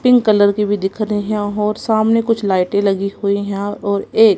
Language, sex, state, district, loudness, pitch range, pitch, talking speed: Hindi, female, Punjab, Kapurthala, -16 LUFS, 200-215 Hz, 205 Hz, 220 wpm